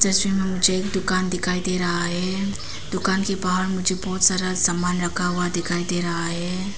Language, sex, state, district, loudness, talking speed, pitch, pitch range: Hindi, female, Arunachal Pradesh, Papum Pare, -22 LUFS, 175 wpm, 185 Hz, 180-190 Hz